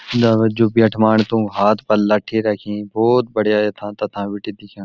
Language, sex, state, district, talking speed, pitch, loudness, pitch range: Garhwali, male, Uttarakhand, Uttarkashi, 175 wpm, 105 Hz, -17 LUFS, 105-110 Hz